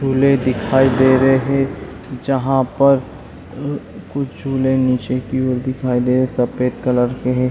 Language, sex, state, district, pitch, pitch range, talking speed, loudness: Hindi, male, Chhattisgarh, Raigarh, 130 Hz, 125-135 Hz, 120 wpm, -17 LUFS